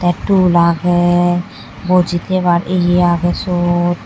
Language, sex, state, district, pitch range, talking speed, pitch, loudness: Chakma, female, Tripura, West Tripura, 175-180 Hz, 105 wpm, 175 Hz, -14 LUFS